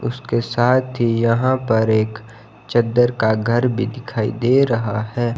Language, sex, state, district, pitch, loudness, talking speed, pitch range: Hindi, male, Himachal Pradesh, Shimla, 115 Hz, -18 LUFS, 155 wpm, 110-120 Hz